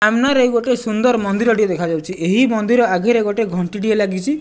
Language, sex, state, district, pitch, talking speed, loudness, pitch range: Odia, male, Odisha, Nuapada, 220 Hz, 190 wpm, -16 LUFS, 200-240 Hz